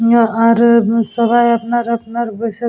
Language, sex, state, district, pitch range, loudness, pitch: Bengali, female, West Bengal, Purulia, 230-235 Hz, -14 LUFS, 235 Hz